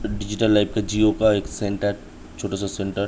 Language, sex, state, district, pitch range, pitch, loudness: Hindi, male, Uttar Pradesh, Budaun, 100-105 Hz, 100 Hz, -22 LUFS